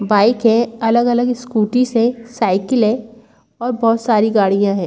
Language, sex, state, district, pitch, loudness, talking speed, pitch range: Hindi, female, Chhattisgarh, Rajnandgaon, 230 Hz, -16 LUFS, 150 wpm, 215-240 Hz